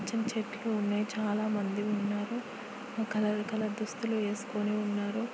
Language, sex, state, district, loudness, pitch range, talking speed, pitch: Telugu, female, Andhra Pradesh, Guntur, -33 LUFS, 210-225 Hz, 100 wpm, 215 Hz